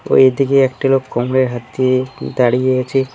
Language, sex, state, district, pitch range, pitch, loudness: Bengali, male, West Bengal, Cooch Behar, 130-135 Hz, 130 Hz, -15 LUFS